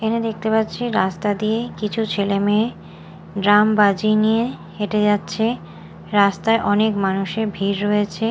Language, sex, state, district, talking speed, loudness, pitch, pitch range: Bengali, female, Odisha, Malkangiri, 130 wpm, -19 LUFS, 210 Hz, 200-220 Hz